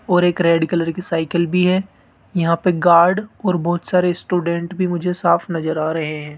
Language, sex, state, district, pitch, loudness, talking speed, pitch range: Hindi, male, Rajasthan, Jaipur, 175 Hz, -18 LUFS, 205 wpm, 165-180 Hz